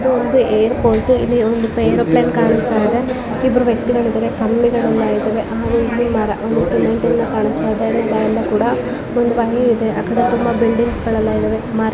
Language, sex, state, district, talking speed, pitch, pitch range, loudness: Kannada, female, Karnataka, Bijapur, 160 wpm, 235 Hz, 225-240 Hz, -16 LUFS